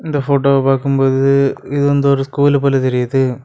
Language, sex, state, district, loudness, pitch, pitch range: Tamil, male, Tamil Nadu, Kanyakumari, -14 LUFS, 140 Hz, 135-140 Hz